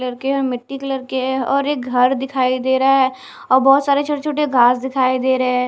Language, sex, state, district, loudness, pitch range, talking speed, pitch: Hindi, female, Punjab, Kapurthala, -17 LUFS, 255-275 Hz, 255 wpm, 265 Hz